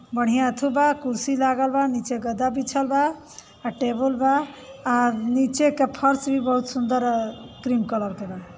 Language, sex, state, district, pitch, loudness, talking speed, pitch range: Bhojpuri, female, Uttar Pradesh, Varanasi, 255 Hz, -23 LUFS, 170 wpm, 240-275 Hz